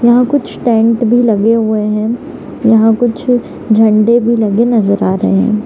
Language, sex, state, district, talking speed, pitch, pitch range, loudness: Hindi, female, Bihar, Gaya, 170 wpm, 225 Hz, 215-240 Hz, -11 LUFS